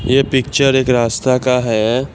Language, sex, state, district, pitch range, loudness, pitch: Hindi, male, Assam, Kamrup Metropolitan, 120-135 Hz, -14 LUFS, 130 Hz